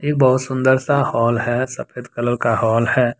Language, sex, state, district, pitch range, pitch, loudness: Hindi, male, Jharkhand, Deoghar, 120-130 Hz, 125 Hz, -18 LUFS